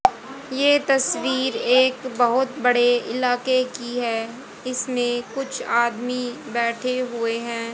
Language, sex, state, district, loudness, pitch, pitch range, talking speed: Hindi, female, Haryana, Rohtak, -22 LUFS, 250 Hz, 240-260 Hz, 110 wpm